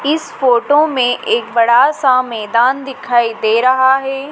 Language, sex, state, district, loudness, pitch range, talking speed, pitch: Hindi, female, Madhya Pradesh, Dhar, -13 LUFS, 235-275 Hz, 155 wpm, 260 Hz